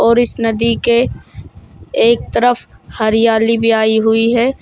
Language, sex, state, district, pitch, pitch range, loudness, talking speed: Hindi, male, Uttar Pradesh, Shamli, 230 Hz, 225-240 Hz, -13 LUFS, 145 wpm